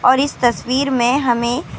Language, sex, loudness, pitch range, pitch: Urdu, female, -16 LUFS, 240-265 Hz, 255 Hz